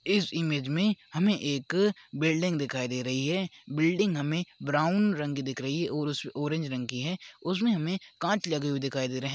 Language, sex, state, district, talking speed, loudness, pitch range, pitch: Hindi, male, Chhattisgarh, Rajnandgaon, 200 wpm, -29 LUFS, 140-180 Hz, 155 Hz